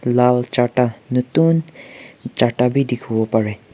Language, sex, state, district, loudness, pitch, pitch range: Nagamese, male, Nagaland, Kohima, -18 LUFS, 125 Hz, 115-130 Hz